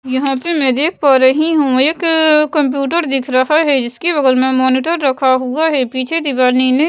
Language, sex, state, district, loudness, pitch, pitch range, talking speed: Hindi, female, Bihar, West Champaran, -13 LUFS, 275 Hz, 260-310 Hz, 200 wpm